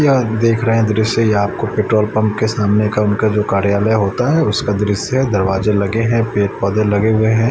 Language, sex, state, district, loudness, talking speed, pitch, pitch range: Hindi, male, Chandigarh, Chandigarh, -15 LUFS, 225 wpm, 110 Hz, 105-115 Hz